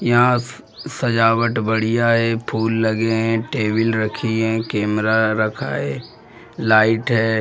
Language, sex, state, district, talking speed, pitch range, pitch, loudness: Hindi, male, Bihar, Jamui, 155 wpm, 110-115 Hz, 115 Hz, -18 LUFS